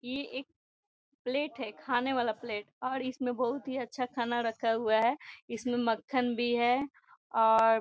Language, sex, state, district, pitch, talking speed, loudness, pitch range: Hindi, female, Bihar, Gopalganj, 245 Hz, 170 wpm, -31 LUFS, 230-260 Hz